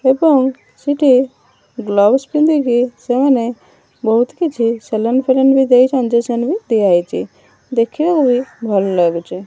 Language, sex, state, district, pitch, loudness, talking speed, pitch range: Odia, female, Odisha, Malkangiri, 250 Hz, -15 LUFS, 110 wpm, 230-270 Hz